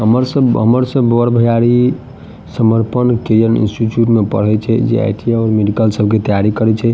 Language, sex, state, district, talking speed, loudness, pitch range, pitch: Maithili, male, Bihar, Madhepura, 190 wpm, -13 LUFS, 110-120 Hz, 115 Hz